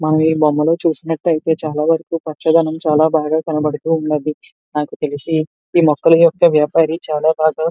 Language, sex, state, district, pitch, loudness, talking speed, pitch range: Telugu, male, Andhra Pradesh, Visakhapatnam, 155 Hz, -16 LUFS, 165 wpm, 150-165 Hz